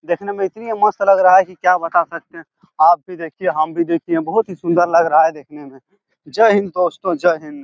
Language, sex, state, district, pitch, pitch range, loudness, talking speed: Hindi, male, Bihar, Jahanabad, 180 Hz, 165-200 Hz, -16 LUFS, 230 wpm